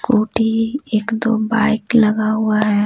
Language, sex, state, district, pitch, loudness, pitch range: Hindi, female, Bihar, Patna, 220 Hz, -17 LUFS, 215-225 Hz